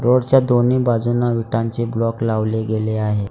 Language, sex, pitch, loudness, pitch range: Marathi, male, 115 Hz, -18 LUFS, 110-120 Hz